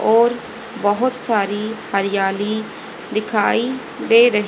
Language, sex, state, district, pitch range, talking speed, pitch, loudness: Hindi, female, Haryana, Rohtak, 205-235 Hz, 95 wpm, 220 Hz, -19 LUFS